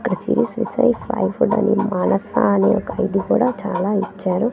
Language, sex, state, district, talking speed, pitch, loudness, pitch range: Telugu, female, Andhra Pradesh, Manyam, 95 wpm, 200 Hz, -19 LUFS, 190-230 Hz